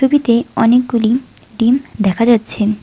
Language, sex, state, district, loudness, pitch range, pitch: Bengali, female, West Bengal, Alipurduar, -14 LUFS, 220-250 Hz, 235 Hz